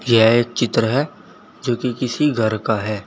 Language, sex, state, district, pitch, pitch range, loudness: Hindi, male, Uttar Pradesh, Saharanpur, 120 Hz, 115-125 Hz, -19 LUFS